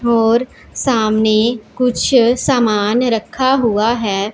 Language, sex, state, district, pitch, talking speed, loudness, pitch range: Hindi, female, Punjab, Pathankot, 230 Hz, 95 wpm, -15 LUFS, 215-250 Hz